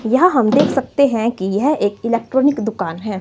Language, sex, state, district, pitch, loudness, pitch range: Hindi, female, Himachal Pradesh, Shimla, 230 Hz, -16 LUFS, 205-270 Hz